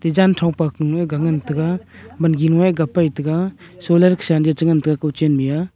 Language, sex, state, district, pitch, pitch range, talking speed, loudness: Wancho, male, Arunachal Pradesh, Longding, 160 Hz, 155-175 Hz, 165 wpm, -18 LUFS